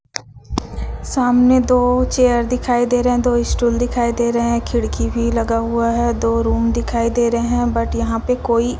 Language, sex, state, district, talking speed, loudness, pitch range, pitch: Hindi, female, Chhattisgarh, Raipur, 190 wpm, -17 LUFS, 235-245 Hz, 235 Hz